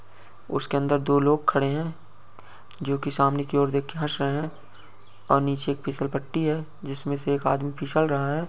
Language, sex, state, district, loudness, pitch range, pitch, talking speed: Hindi, male, Uttar Pradesh, Ghazipur, -25 LUFS, 135-145 Hz, 140 Hz, 200 wpm